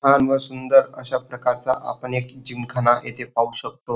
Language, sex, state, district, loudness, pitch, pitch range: Marathi, male, Maharashtra, Dhule, -22 LUFS, 125 Hz, 125-130 Hz